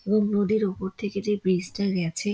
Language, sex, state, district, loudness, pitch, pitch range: Bengali, female, West Bengal, Dakshin Dinajpur, -26 LUFS, 200 Hz, 190-210 Hz